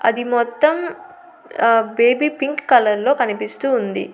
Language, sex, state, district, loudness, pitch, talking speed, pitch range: Telugu, female, Andhra Pradesh, Annamaya, -17 LUFS, 250 Hz, 115 wpm, 230-300 Hz